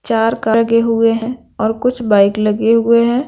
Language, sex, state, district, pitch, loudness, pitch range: Hindi, female, Bihar, Patna, 230 Hz, -14 LUFS, 220-235 Hz